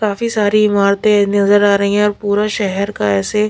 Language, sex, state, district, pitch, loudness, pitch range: Hindi, female, Bihar, Patna, 205 Hz, -14 LUFS, 200-210 Hz